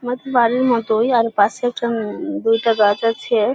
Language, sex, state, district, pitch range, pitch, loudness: Bengali, male, West Bengal, Kolkata, 225-245 Hz, 230 Hz, -18 LUFS